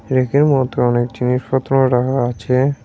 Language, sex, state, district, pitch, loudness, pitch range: Bengali, male, West Bengal, Cooch Behar, 130 Hz, -16 LUFS, 125-135 Hz